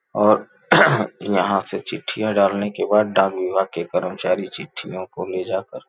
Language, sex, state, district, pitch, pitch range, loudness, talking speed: Hindi, male, Uttar Pradesh, Gorakhpur, 95 Hz, 95-105 Hz, -20 LUFS, 165 wpm